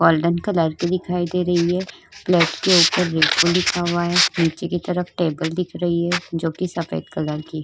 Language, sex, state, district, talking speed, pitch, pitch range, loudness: Hindi, female, Uttar Pradesh, Budaun, 205 wpm, 175 Hz, 165-180 Hz, -19 LUFS